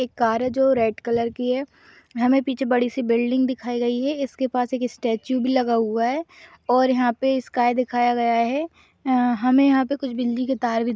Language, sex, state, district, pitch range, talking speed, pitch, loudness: Hindi, female, Chhattisgarh, Sarguja, 240-265 Hz, 220 wpm, 250 Hz, -22 LUFS